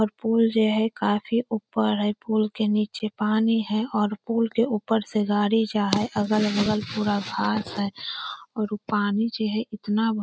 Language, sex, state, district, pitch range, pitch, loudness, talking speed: Magahi, female, Bihar, Lakhisarai, 210-225 Hz, 215 Hz, -24 LUFS, 180 wpm